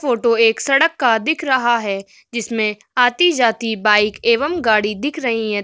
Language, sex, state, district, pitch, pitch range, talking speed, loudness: Hindi, female, Uttar Pradesh, Muzaffarnagar, 235 Hz, 215-260 Hz, 170 wpm, -16 LUFS